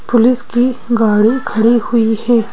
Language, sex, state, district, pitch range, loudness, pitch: Hindi, female, Madhya Pradesh, Bhopal, 225-240 Hz, -13 LUFS, 235 Hz